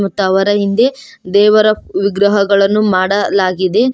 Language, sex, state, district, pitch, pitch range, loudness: Kannada, female, Karnataka, Koppal, 200 Hz, 195-210 Hz, -12 LUFS